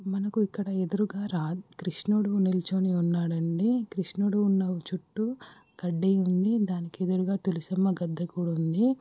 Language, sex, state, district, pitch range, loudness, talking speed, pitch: Telugu, female, Andhra Pradesh, Guntur, 175-205 Hz, -28 LUFS, 115 wpm, 190 Hz